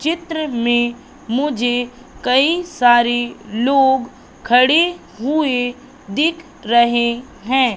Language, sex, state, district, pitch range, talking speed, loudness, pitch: Hindi, female, Madhya Pradesh, Katni, 240-285 Hz, 85 wpm, -17 LUFS, 255 Hz